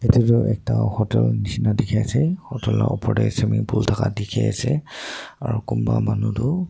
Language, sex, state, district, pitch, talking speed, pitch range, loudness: Nagamese, male, Nagaland, Dimapur, 115 Hz, 190 wpm, 110-125 Hz, -21 LUFS